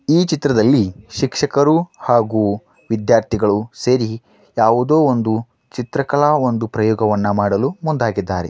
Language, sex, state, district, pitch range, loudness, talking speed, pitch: Kannada, male, Karnataka, Dharwad, 110-140 Hz, -17 LUFS, 90 wpm, 115 Hz